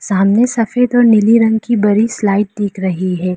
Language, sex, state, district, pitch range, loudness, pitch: Hindi, female, Arunachal Pradesh, Lower Dibang Valley, 195-230 Hz, -13 LUFS, 215 Hz